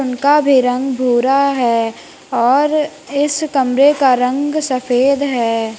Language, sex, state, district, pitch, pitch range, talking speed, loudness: Hindi, female, Uttar Pradesh, Lalitpur, 265 Hz, 250-285 Hz, 125 wpm, -15 LUFS